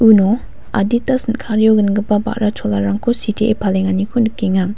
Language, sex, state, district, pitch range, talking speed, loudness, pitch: Garo, female, Meghalaya, West Garo Hills, 200-225 Hz, 115 wpm, -16 LUFS, 215 Hz